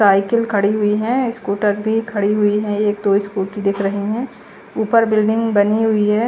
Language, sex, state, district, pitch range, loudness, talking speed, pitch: Hindi, female, Chandigarh, Chandigarh, 205-225 Hz, -17 LUFS, 190 wpm, 210 Hz